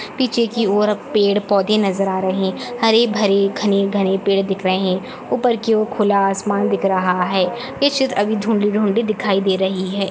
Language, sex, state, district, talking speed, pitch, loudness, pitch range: Hindi, female, Chhattisgarh, Jashpur, 190 wpm, 200 Hz, -18 LUFS, 195-220 Hz